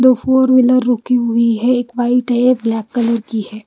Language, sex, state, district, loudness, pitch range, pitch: Hindi, female, Chandigarh, Chandigarh, -14 LUFS, 230-250 Hz, 245 Hz